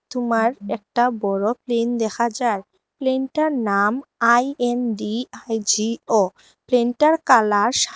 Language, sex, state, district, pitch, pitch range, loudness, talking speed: Bengali, female, Assam, Hailakandi, 235 Hz, 215-250 Hz, -20 LUFS, 115 wpm